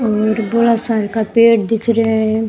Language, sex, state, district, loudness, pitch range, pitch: Rajasthani, female, Rajasthan, Churu, -14 LUFS, 220-230 Hz, 225 Hz